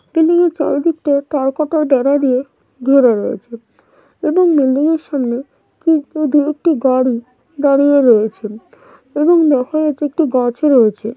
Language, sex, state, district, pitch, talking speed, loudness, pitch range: Bengali, female, West Bengal, Malda, 280 Hz, 115 wpm, -14 LUFS, 255-310 Hz